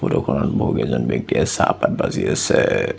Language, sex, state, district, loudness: Assamese, male, Assam, Sonitpur, -19 LUFS